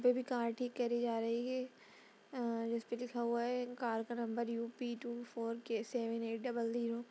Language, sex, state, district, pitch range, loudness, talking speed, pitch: Hindi, female, Uttar Pradesh, Budaun, 230-245 Hz, -39 LUFS, 195 wpm, 235 Hz